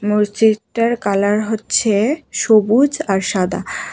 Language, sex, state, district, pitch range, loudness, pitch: Bengali, female, Tripura, West Tripura, 205-230 Hz, -16 LUFS, 215 Hz